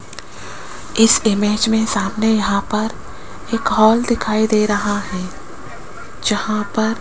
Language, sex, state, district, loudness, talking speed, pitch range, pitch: Hindi, female, Rajasthan, Jaipur, -17 LUFS, 130 wpm, 205-225 Hz, 215 Hz